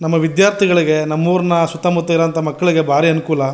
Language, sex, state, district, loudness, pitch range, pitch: Kannada, male, Karnataka, Mysore, -15 LUFS, 155-175 Hz, 165 Hz